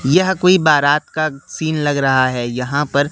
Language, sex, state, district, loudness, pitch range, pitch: Hindi, male, Madhya Pradesh, Katni, -16 LUFS, 135-155 Hz, 145 Hz